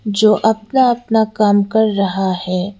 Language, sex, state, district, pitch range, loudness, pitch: Hindi, female, Sikkim, Gangtok, 195-220 Hz, -15 LUFS, 210 Hz